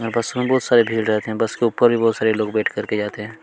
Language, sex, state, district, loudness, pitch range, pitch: Hindi, male, Chhattisgarh, Kabirdham, -19 LUFS, 110-120 Hz, 115 Hz